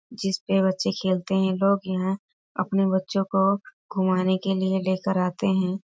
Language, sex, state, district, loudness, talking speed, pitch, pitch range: Hindi, female, Bihar, East Champaran, -24 LUFS, 165 wpm, 190 Hz, 185-195 Hz